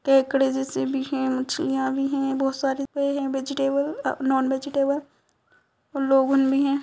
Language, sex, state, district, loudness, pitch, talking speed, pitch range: Hindi, female, Uttar Pradesh, Etah, -24 LUFS, 270 Hz, 140 wpm, 270-280 Hz